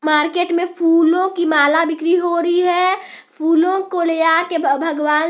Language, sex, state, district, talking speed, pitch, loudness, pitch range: Hindi, female, Chhattisgarh, Balrampur, 170 wpm, 335 Hz, -16 LUFS, 325-355 Hz